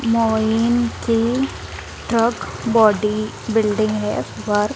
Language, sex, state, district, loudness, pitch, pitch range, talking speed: Hindi, female, Maharashtra, Gondia, -19 LUFS, 225 Hz, 215-230 Hz, 90 wpm